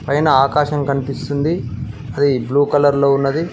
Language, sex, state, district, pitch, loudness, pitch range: Telugu, male, Telangana, Mahabubabad, 140 Hz, -16 LUFS, 135-145 Hz